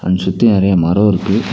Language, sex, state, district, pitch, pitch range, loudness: Tamil, male, Tamil Nadu, Nilgiris, 95 Hz, 90-105 Hz, -13 LUFS